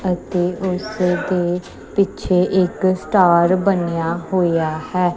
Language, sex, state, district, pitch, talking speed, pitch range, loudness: Punjabi, female, Punjab, Kapurthala, 180 Hz, 105 wpm, 175-185 Hz, -18 LUFS